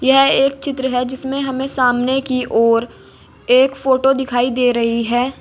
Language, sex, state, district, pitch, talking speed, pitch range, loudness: Hindi, female, Uttar Pradesh, Saharanpur, 260 Hz, 165 wpm, 245-270 Hz, -16 LUFS